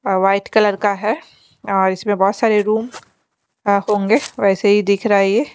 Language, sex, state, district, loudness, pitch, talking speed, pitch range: Hindi, female, Chandigarh, Chandigarh, -16 LUFS, 205 Hz, 195 wpm, 195-210 Hz